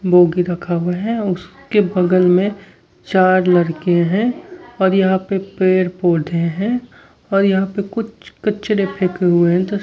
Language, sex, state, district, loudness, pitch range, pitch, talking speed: Hindi, male, Bihar, Kaimur, -17 LUFS, 180-200 Hz, 190 Hz, 145 wpm